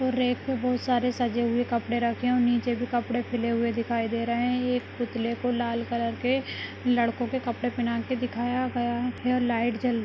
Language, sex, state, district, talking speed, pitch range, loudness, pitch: Hindi, female, Maharashtra, Nagpur, 210 wpm, 235-250 Hz, -27 LUFS, 240 Hz